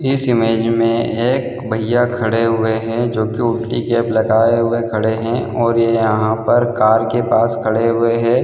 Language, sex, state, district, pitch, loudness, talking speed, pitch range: Hindi, male, Chhattisgarh, Bilaspur, 115 Hz, -16 LUFS, 185 wpm, 110-120 Hz